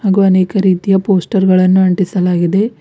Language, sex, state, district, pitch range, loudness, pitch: Kannada, female, Karnataka, Bidar, 185-195 Hz, -12 LUFS, 190 Hz